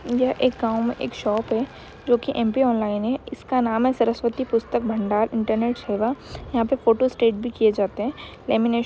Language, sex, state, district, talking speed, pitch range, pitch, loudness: Hindi, female, Bihar, Madhepura, 205 wpm, 225-250 Hz, 235 Hz, -23 LUFS